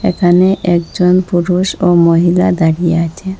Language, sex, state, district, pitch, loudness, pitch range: Bengali, female, Assam, Hailakandi, 175 Hz, -12 LUFS, 170-185 Hz